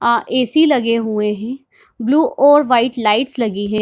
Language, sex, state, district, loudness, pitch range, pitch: Hindi, female, Bihar, Darbhanga, -15 LUFS, 220-280 Hz, 245 Hz